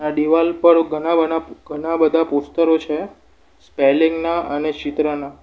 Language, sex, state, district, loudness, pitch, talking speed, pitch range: Gujarati, male, Gujarat, Valsad, -18 LUFS, 160 Hz, 135 wpm, 150-165 Hz